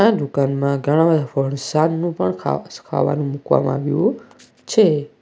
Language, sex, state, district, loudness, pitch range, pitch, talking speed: Gujarati, male, Gujarat, Valsad, -19 LUFS, 140-170 Hz, 150 Hz, 125 wpm